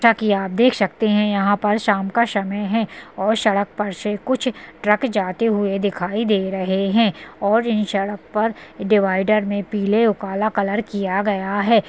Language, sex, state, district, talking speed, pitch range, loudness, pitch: Hindi, female, Uttar Pradesh, Hamirpur, 180 wpm, 195-220 Hz, -20 LUFS, 205 Hz